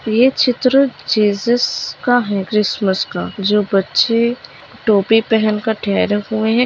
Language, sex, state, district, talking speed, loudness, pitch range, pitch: Hindi, female, Maharashtra, Dhule, 115 wpm, -16 LUFS, 205-240 Hz, 220 Hz